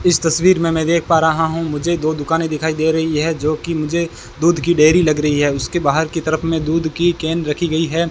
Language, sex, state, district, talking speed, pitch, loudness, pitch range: Hindi, male, Rajasthan, Bikaner, 250 wpm, 160 Hz, -17 LUFS, 155-170 Hz